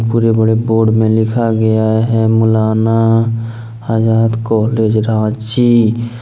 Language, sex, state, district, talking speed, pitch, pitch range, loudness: Hindi, male, Jharkhand, Ranchi, 105 wpm, 110 Hz, 110-115 Hz, -13 LUFS